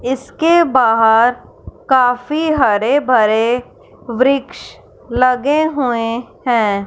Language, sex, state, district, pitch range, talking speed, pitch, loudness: Hindi, female, Punjab, Fazilka, 235-275 Hz, 80 wpm, 250 Hz, -14 LUFS